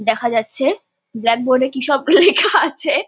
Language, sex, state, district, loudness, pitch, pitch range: Bengali, female, West Bengal, Kolkata, -15 LUFS, 275 Hz, 235-315 Hz